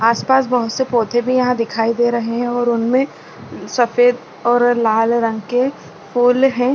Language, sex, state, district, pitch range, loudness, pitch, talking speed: Hindi, female, Chhattisgarh, Bilaspur, 230-250 Hz, -16 LUFS, 240 Hz, 160 wpm